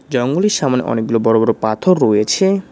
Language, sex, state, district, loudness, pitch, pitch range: Bengali, male, West Bengal, Cooch Behar, -15 LUFS, 125 Hz, 115-185 Hz